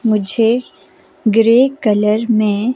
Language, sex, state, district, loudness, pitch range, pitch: Hindi, female, Himachal Pradesh, Shimla, -14 LUFS, 210-240 Hz, 225 Hz